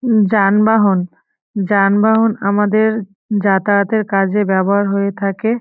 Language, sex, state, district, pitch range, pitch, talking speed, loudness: Bengali, female, West Bengal, Paschim Medinipur, 195-215 Hz, 205 Hz, 95 wpm, -15 LUFS